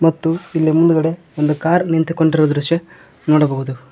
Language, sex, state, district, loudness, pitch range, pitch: Kannada, male, Karnataka, Koppal, -16 LUFS, 150-165 Hz, 160 Hz